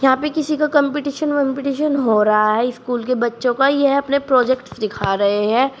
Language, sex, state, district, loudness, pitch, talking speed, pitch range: Hindi, female, Uttar Pradesh, Shamli, -18 LUFS, 260 Hz, 195 wpm, 235-280 Hz